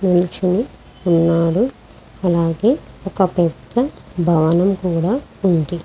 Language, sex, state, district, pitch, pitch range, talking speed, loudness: Telugu, female, Andhra Pradesh, Krishna, 180 Hz, 170-195 Hz, 80 wpm, -18 LUFS